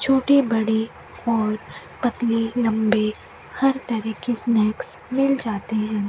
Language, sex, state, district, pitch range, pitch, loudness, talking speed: Hindi, female, Rajasthan, Bikaner, 220-250 Hz, 225 Hz, -22 LUFS, 120 wpm